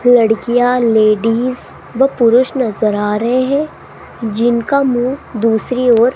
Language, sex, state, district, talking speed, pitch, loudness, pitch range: Hindi, female, Rajasthan, Jaipur, 125 wpm, 240 Hz, -14 LUFS, 225-255 Hz